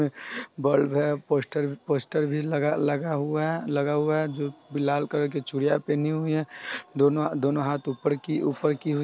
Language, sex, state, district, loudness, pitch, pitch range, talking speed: Hindi, male, Bihar, Sitamarhi, -26 LUFS, 145 Hz, 145-150 Hz, 180 wpm